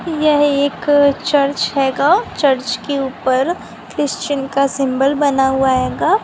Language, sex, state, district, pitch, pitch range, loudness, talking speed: Hindi, female, Bihar, Sitamarhi, 275 Hz, 270-290 Hz, -16 LUFS, 125 wpm